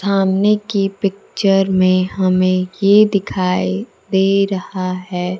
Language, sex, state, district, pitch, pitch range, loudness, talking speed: Hindi, female, Bihar, Kaimur, 190 Hz, 185-195 Hz, -16 LUFS, 110 wpm